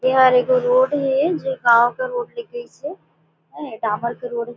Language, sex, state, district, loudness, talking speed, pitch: Surgujia, female, Chhattisgarh, Sarguja, -18 LUFS, 195 wpm, 275 Hz